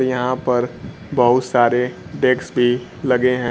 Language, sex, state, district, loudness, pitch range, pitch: Hindi, male, Bihar, Kaimur, -18 LUFS, 120-130 Hz, 125 Hz